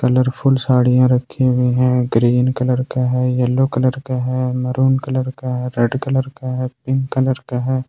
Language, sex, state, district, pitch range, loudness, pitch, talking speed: Hindi, male, Jharkhand, Ranchi, 125-130 Hz, -17 LUFS, 130 Hz, 190 wpm